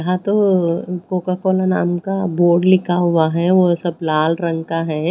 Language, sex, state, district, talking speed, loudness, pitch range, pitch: Hindi, female, Odisha, Khordha, 190 wpm, -17 LUFS, 170-185 Hz, 175 Hz